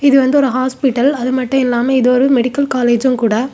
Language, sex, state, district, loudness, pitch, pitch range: Tamil, female, Tamil Nadu, Kanyakumari, -14 LUFS, 260 Hz, 250-270 Hz